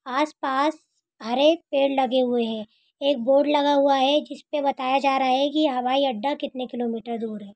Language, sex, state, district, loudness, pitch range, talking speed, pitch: Hindi, female, Bihar, Saran, -23 LUFS, 250-285 Hz, 185 wpm, 275 Hz